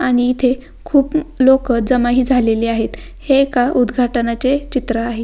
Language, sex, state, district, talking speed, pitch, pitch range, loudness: Marathi, female, Maharashtra, Pune, 150 wpm, 250 Hz, 240-265 Hz, -16 LUFS